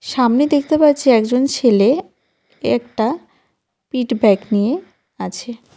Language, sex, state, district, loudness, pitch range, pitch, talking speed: Bengali, female, West Bengal, Cooch Behar, -16 LUFS, 230-280 Hz, 245 Hz, 105 wpm